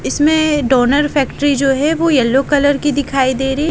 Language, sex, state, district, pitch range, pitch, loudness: Hindi, female, Haryana, Jhajjar, 270-295 Hz, 285 Hz, -14 LUFS